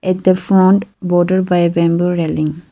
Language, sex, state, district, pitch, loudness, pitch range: English, female, Arunachal Pradesh, Lower Dibang Valley, 180 Hz, -14 LUFS, 170-185 Hz